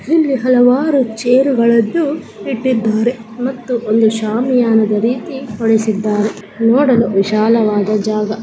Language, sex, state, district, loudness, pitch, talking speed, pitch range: Kannada, female, Karnataka, Bellary, -14 LUFS, 230 Hz, 85 wpm, 215-255 Hz